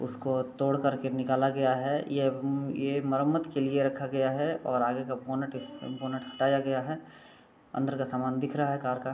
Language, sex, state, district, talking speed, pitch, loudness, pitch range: Hindi, male, Bihar, East Champaran, 215 wpm, 135 Hz, -30 LUFS, 130-140 Hz